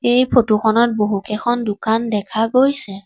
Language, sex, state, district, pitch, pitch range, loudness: Assamese, female, Assam, Sonitpur, 225 Hz, 210-240 Hz, -17 LUFS